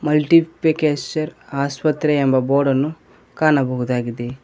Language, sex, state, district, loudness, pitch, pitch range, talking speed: Kannada, male, Karnataka, Koppal, -19 LUFS, 145 Hz, 130-155 Hz, 70 wpm